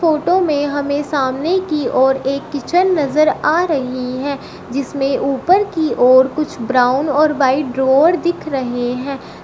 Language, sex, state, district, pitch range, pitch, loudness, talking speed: Hindi, female, Uttar Pradesh, Shamli, 265-310 Hz, 285 Hz, -16 LUFS, 155 wpm